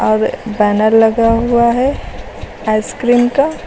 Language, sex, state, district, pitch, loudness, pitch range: Hindi, female, Uttar Pradesh, Lucknow, 230 Hz, -13 LUFS, 215-245 Hz